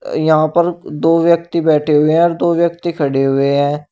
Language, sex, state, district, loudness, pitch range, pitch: Hindi, male, Uttar Pradesh, Shamli, -14 LUFS, 150-170 Hz, 160 Hz